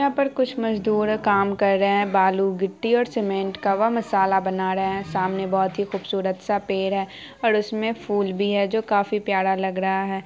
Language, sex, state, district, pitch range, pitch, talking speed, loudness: Hindi, female, Bihar, Araria, 190-215 Hz, 200 Hz, 210 wpm, -22 LUFS